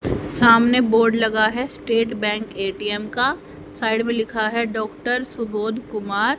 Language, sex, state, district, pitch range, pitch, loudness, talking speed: Hindi, female, Haryana, Rohtak, 215-235 Hz, 225 Hz, -20 LUFS, 140 wpm